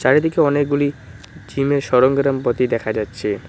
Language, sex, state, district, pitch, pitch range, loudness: Bengali, male, West Bengal, Cooch Behar, 125 Hz, 110-140 Hz, -18 LUFS